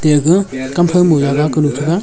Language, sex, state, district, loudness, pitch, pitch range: Wancho, male, Arunachal Pradesh, Longding, -13 LUFS, 150 Hz, 145-175 Hz